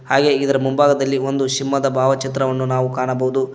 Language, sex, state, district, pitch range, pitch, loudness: Kannada, male, Karnataka, Koppal, 130-135 Hz, 135 Hz, -18 LUFS